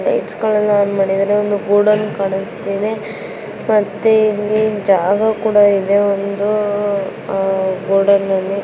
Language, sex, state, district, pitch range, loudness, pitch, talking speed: Kannada, female, Karnataka, Belgaum, 195-210 Hz, -15 LUFS, 205 Hz, 110 wpm